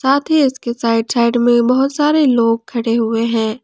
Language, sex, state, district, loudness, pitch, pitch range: Hindi, female, Jharkhand, Palamu, -15 LUFS, 235 Hz, 230-270 Hz